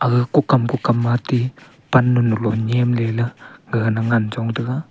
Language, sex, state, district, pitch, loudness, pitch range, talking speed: Wancho, male, Arunachal Pradesh, Longding, 120 Hz, -19 LUFS, 115-125 Hz, 145 wpm